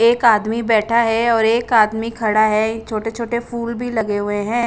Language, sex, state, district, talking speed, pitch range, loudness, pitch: Hindi, female, Chandigarh, Chandigarh, 205 wpm, 215-235 Hz, -17 LUFS, 225 Hz